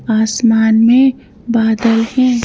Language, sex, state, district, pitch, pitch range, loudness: Hindi, female, Madhya Pradesh, Bhopal, 230 Hz, 220-245 Hz, -12 LUFS